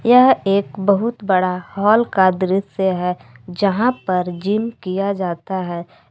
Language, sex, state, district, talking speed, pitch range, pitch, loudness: Hindi, female, Jharkhand, Palamu, 140 wpm, 180-210 Hz, 190 Hz, -18 LUFS